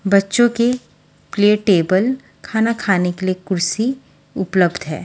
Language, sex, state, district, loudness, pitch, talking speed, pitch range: Hindi, female, Haryana, Charkhi Dadri, -17 LUFS, 200 Hz, 130 wpm, 185-230 Hz